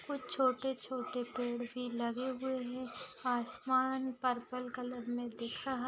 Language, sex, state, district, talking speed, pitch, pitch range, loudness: Hindi, female, Maharashtra, Aurangabad, 135 wpm, 255 Hz, 245-260 Hz, -38 LUFS